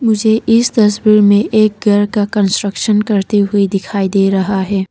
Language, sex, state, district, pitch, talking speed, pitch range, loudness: Hindi, female, Arunachal Pradesh, Papum Pare, 205 Hz, 170 wpm, 195-215 Hz, -13 LUFS